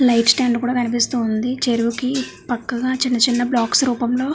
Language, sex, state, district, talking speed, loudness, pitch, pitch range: Telugu, female, Andhra Pradesh, Visakhapatnam, 150 wpm, -19 LUFS, 245 Hz, 235-255 Hz